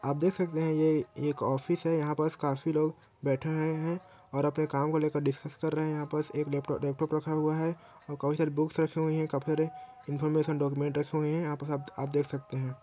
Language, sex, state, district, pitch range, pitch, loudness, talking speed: Hindi, male, Chhattisgarh, Korba, 145-160 Hz, 155 Hz, -31 LUFS, 245 wpm